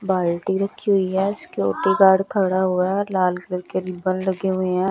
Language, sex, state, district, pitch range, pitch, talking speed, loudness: Hindi, female, Bihar, West Champaran, 185-195 Hz, 190 Hz, 195 wpm, -21 LUFS